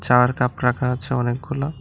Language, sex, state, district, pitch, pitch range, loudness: Bengali, male, Tripura, West Tripura, 125 Hz, 125-140 Hz, -21 LUFS